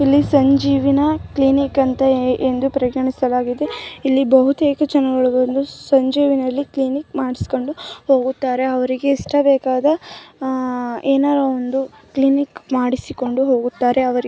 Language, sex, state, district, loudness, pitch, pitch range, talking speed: Kannada, female, Karnataka, Mysore, -17 LUFS, 270 Hz, 255-280 Hz, 75 wpm